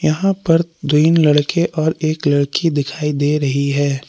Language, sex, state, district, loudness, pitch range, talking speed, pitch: Hindi, male, Jharkhand, Palamu, -16 LUFS, 145-165 Hz, 160 wpm, 150 Hz